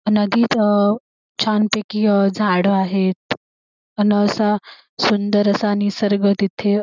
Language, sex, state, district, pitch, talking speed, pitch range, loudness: Marathi, female, Maharashtra, Sindhudurg, 205 Hz, 115 wpm, 195-210 Hz, -18 LUFS